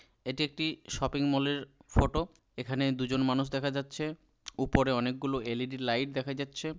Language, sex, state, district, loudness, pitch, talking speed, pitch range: Bengali, male, West Bengal, Malda, -32 LUFS, 135 Hz, 170 wpm, 130-140 Hz